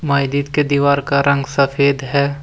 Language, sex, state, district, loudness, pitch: Hindi, male, Jharkhand, Deoghar, -16 LUFS, 140 Hz